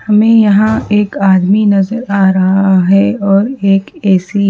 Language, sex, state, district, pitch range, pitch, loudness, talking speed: Hindi, female, Haryana, Charkhi Dadri, 195-210 Hz, 200 Hz, -10 LUFS, 160 wpm